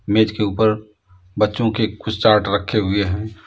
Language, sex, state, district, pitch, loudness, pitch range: Hindi, male, Uttar Pradesh, Lalitpur, 105 Hz, -19 LUFS, 100-110 Hz